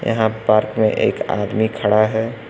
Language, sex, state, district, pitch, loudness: Hindi, male, Uttar Pradesh, Lucknow, 110 Hz, -18 LUFS